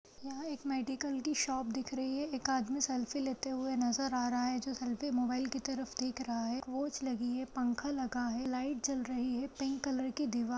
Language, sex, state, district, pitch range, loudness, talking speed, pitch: Hindi, female, Uttar Pradesh, Budaun, 250-270 Hz, -36 LUFS, 225 wpm, 260 Hz